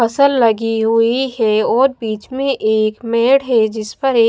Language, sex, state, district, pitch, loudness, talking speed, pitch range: Hindi, female, Bihar, Katihar, 230 Hz, -15 LUFS, 180 wpm, 220-265 Hz